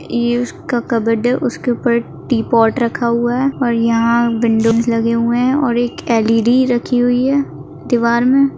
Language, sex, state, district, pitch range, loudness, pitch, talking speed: Hindi, female, Maharashtra, Aurangabad, 230-245 Hz, -15 LUFS, 235 Hz, 170 wpm